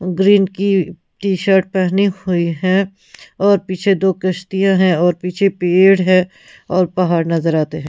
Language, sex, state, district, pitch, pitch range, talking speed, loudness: Hindi, female, Punjab, Pathankot, 185 Hz, 180-195 Hz, 150 wpm, -15 LUFS